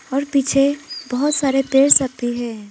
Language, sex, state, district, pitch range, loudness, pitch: Hindi, female, Arunachal Pradesh, Papum Pare, 250-280 Hz, -17 LUFS, 270 Hz